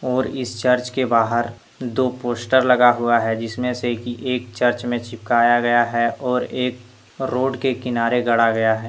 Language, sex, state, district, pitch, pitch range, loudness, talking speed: Hindi, male, Jharkhand, Deoghar, 120 Hz, 115-125 Hz, -20 LUFS, 180 wpm